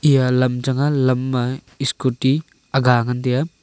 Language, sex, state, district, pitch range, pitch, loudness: Wancho, male, Arunachal Pradesh, Longding, 125-135 Hz, 130 Hz, -19 LUFS